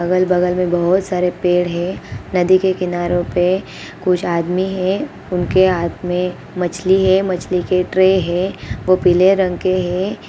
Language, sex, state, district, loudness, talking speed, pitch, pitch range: Hindi, female, Bihar, Gopalganj, -17 LUFS, 165 wpm, 180 Hz, 180-185 Hz